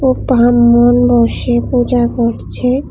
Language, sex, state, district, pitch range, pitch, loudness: Bengali, female, Tripura, West Tripura, 240-250 Hz, 245 Hz, -12 LUFS